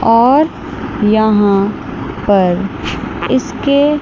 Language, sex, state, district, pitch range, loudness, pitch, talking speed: Hindi, female, Chandigarh, Chandigarh, 200-280 Hz, -14 LUFS, 220 Hz, 60 wpm